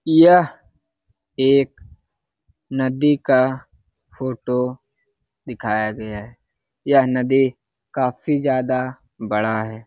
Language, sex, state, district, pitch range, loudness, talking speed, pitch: Hindi, male, Bihar, Lakhisarai, 120-135 Hz, -19 LUFS, 90 wpm, 130 Hz